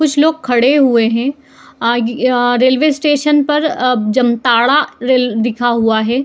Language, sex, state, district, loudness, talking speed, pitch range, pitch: Hindi, female, Jharkhand, Jamtara, -13 LUFS, 125 wpm, 235-285 Hz, 250 Hz